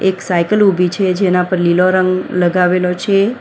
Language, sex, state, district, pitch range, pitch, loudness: Gujarati, female, Gujarat, Valsad, 180-190 Hz, 185 Hz, -14 LUFS